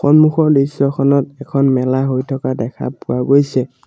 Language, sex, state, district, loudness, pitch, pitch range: Assamese, male, Assam, Sonitpur, -15 LUFS, 140 Hz, 130-140 Hz